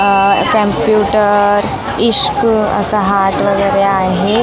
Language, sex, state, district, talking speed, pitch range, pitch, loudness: Marathi, female, Maharashtra, Mumbai Suburban, 95 wpm, 200-210 Hz, 200 Hz, -12 LUFS